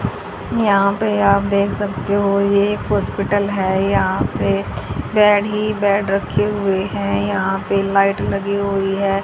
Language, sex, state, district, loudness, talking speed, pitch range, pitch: Hindi, female, Haryana, Rohtak, -18 LUFS, 155 wpm, 190-205 Hz, 200 Hz